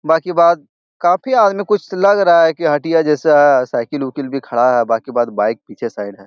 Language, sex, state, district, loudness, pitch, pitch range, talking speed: Hindi, male, Bihar, Jahanabad, -15 LUFS, 150 Hz, 120-170 Hz, 250 wpm